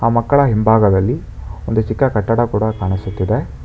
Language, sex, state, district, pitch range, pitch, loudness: Kannada, male, Karnataka, Bangalore, 100-115 Hz, 110 Hz, -16 LUFS